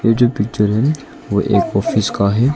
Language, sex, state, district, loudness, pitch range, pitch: Hindi, male, Arunachal Pradesh, Longding, -16 LUFS, 105-130 Hz, 115 Hz